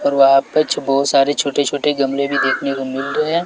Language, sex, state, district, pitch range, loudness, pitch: Hindi, male, Bihar, West Champaran, 135-145 Hz, -16 LUFS, 140 Hz